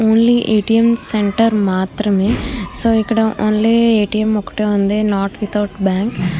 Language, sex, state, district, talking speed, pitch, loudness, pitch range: Telugu, female, Andhra Pradesh, Krishna, 180 wpm, 215 Hz, -15 LUFS, 200-225 Hz